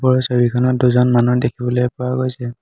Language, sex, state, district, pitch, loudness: Assamese, male, Assam, Hailakandi, 125 Hz, -16 LUFS